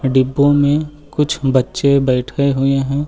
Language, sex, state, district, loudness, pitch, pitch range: Hindi, male, Uttar Pradesh, Lucknow, -16 LUFS, 140 Hz, 135-145 Hz